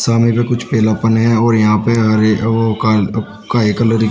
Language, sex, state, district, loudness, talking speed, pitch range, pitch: Hindi, male, Uttar Pradesh, Shamli, -14 LUFS, 205 wpm, 110-115 Hz, 110 Hz